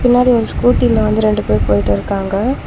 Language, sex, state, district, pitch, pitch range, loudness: Tamil, female, Tamil Nadu, Chennai, 215 Hz, 190-245 Hz, -14 LUFS